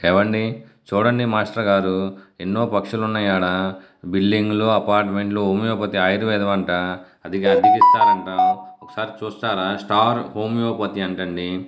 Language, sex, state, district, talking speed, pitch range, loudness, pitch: Telugu, male, Andhra Pradesh, Guntur, 105 wpm, 95-110 Hz, -20 LUFS, 100 Hz